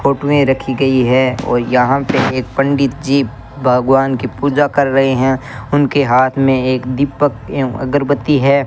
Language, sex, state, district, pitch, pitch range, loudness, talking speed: Hindi, male, Rajasthan, Bikaner, 135 Hz, 130-140 Hz, -14 LUFS, 175 wpm